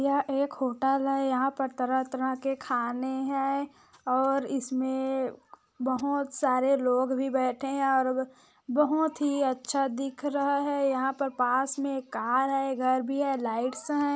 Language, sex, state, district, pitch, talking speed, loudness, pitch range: Hindi, female, Chhattisgarh, Korba, 270 Hz, 155 wpm, -28 LUFS, 260-275 Hz